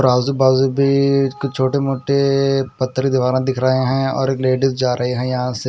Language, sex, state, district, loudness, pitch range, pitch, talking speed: Hindi, male, Punjab, Fazilka, -17 LUFS, 130-135 Hz, 130 Hz, 200 wpm